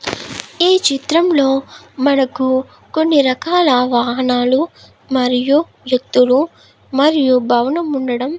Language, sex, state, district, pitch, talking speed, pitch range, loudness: Telugu, female, Andhra Pradesh, Guntur, 270 Hz, 95 wpm, 255-310 Hz, -15 LUFS